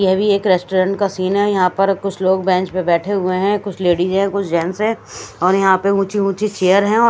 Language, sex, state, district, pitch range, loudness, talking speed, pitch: Hindi, female, Chandigarh, Chandigarh, 185-200 Hz, -16 LUFS, 255 wpm, 195 Hz